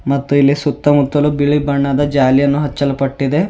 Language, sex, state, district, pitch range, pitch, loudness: Kannada, male, Karnataka, Bidar, 140-145 Hz, 140 Hz, -14 LUFS